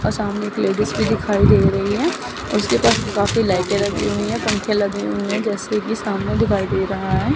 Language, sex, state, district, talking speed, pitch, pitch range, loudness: Hindi, female, Chandigarh, Chandigarh, 220 wpm, 200 Hz, 190-210 Hz, -19 LUFS